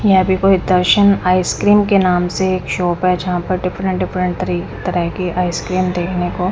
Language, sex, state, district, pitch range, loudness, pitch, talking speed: Hindi, female, Punjab, Kapurthala, 180-190 Hz, -16 LUFS, 180 Hz, 195 wpm